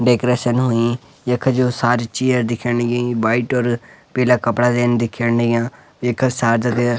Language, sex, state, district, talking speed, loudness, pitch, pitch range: Garhwali, male, Uttarakhand, Uttarkashi, 145 wpm, -18 LUFS, 120 Hz, 120-125 Hz